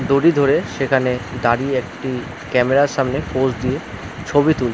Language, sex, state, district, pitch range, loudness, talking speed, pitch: Bengali, male, West Bengal, North 24 Parganas, 125-140 Hz, -18 LUFS, 165 wpm, 130 Hz